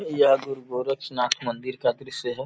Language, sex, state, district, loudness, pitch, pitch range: Hindi, male, Uttar Pradesh, Gorakhpur, -25 LUFS, 130 Hz, 125-135 Hz